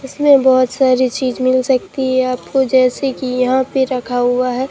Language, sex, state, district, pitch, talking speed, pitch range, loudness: Hindi, female, Bihar, Katihar, 255 Hz, 205 wpm, 255-265 Hz, -15 LUFS